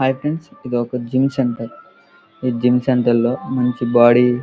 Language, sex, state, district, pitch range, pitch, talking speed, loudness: Telugu, male, Andhra Pradesh, Krishna, 120-130 Hz, 125 Hz, 165 wpm, -17 LUFS